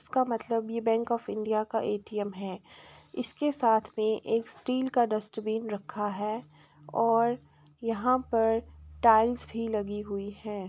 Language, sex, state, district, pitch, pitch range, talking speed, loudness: Hindi, female, Uttar Pradesh, Jalaun, 220 Hz, 205-230 Hz, 155 wpm, -29 LUFS